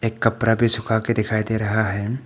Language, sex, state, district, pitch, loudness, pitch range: Hindi, male, Arunachal Pradesh, Papum Pare, 110 Hz, -20 LUFS, 110-115 Hz